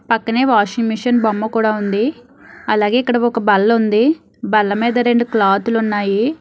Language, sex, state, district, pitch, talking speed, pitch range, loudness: Telugu, female, Telangana, Hyderabad, 225 Hz, 160 wpm, 210-240 Hz, -16 LUFS